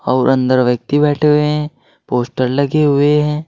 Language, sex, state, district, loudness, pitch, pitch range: Hindi, male, Uttar Pradesh, Saharanpur, -14 LUFS, 145 Hz, 130-150 Hz